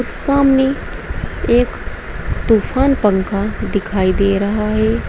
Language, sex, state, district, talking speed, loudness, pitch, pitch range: Hindi, female, Uttar Pradesh, Saharanpur, 95 wpm, -16 LUFS, 215 Hz, 200-260 Hz